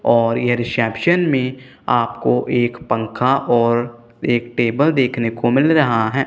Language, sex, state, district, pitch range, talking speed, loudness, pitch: Hindi, male, Punjab, Kapurthala, 115-130 Hz, 155 wpm, -17 LUFS, 120 Hz